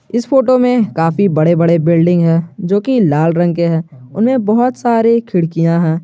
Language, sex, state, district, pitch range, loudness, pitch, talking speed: Hindi, male, Jharkhand, Garhwa, 165-235 Hz, -13 LUFS, 175 Hz, 190 wpm